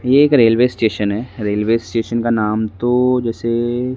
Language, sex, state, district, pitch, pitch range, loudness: Hindi, male, Maharashtra, Mumbai Suburban, 115 Hz, 110-125 Hz, -16 LUFS